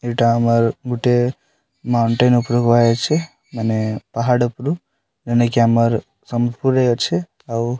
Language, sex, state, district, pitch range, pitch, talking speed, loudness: Odia, male, Odisha, Sambalpur, 115-125 Hz, 120 Hz, 125 wpm, -18 LUFS